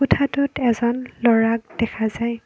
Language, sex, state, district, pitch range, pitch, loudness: Assamese, female, Assam, Kamrup Metropolitan, 230-265 Hz, 235 Hz, -20 LUFS